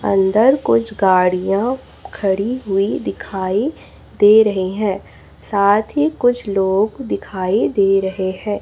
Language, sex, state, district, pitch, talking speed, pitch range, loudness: Hindi, female, Chhattisgarh, Raipur, 200 Hz, 120 wpm, 190-220 Hz, -17 LUFS